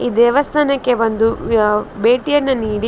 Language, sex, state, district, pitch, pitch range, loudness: Kannada, female, Karnataka, Dakshina Kannada, 235 Hz, 225-270 Hz, -15 LUFS